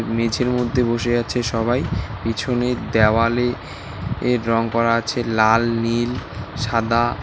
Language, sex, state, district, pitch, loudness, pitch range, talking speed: Bengali, male, West Bengal, Alipurduar, 115 Hz, -20 LUFS, 110-120 Hz, 115 wpm